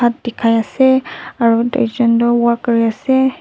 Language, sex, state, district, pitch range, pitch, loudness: Nagamese, female, Nagaland, Dimapur, 230-260 Hz, 235 Hz, -14 LUFS